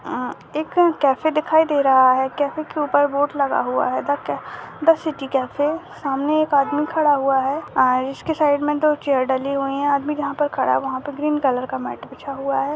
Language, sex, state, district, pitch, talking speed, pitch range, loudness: Hindi, female, Uttarakhand, Uttarkashi, 285 Hz, 225 wpm, 270-300 Hz, -20 LUFS